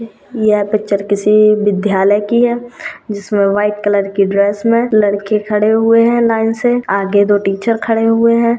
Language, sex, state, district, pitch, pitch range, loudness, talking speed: Hindi, female, Rajasthan, Churu, 215 Hz, 205-230 Hz, -13 LUFS, 165 wpm